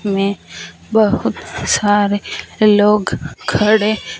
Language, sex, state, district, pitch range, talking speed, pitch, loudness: Hindi, female, Punjab, Fazilka, 205-215 Hz, 85 wpm, 210 Hz, -15 LUFS